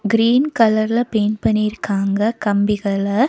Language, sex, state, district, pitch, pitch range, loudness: Tamil, female, Tamil Nadu, Nilgiris, 215 Hz, 205-225 Hz, -17 LUFS